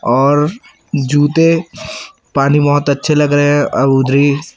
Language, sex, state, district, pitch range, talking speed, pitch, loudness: Hindi, male, Chhattisgarh, Raipur, 140-150 Hz, 160 wpm, 145 Hz, -13 LUFS